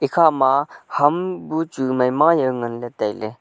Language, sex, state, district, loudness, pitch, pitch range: Wancho, male, Arunachal Pradesh, Longding, -19 LUFS, 135 Hz, 125-160 Hz